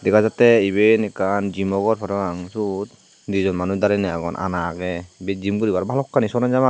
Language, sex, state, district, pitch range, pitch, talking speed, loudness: Chakma, male, Tripura, Dhalai, 95-110 Hz, 100 Hz, 190 wpm, -20 LUFS